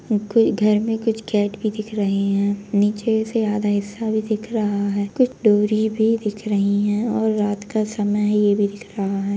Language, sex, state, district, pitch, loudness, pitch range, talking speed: Kumaoni, female, Uttarakhand, Tehri Garhwal, 210 Hz, -20 LUFS, 205-220 Hz, 200 wpm